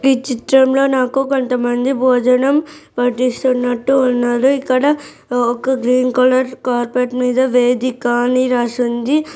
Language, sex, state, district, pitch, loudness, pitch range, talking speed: Telugu, female, Telangana, Nalgonda, 255 Hz, -15 LUFS, 245-265 Hz, 110 wpm